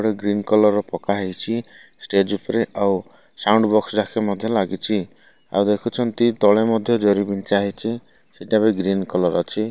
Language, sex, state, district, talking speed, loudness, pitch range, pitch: Odia, male, Odisha, Malkangiri, 155 wpm, -20 LUFS, 100-110 Hz, 105 Hz